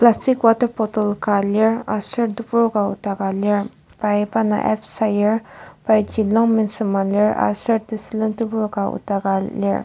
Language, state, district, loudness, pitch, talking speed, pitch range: Ao, Nagaland, Kohima, -18 LUFS, 215 Hz, 160 wpm, 205-225 Hz